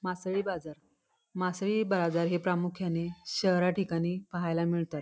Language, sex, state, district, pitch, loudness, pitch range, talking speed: Marathi, female, Maharashtra, Pune, 180 Hz, -31 LUFS, 170-190 Hz, 120 wpm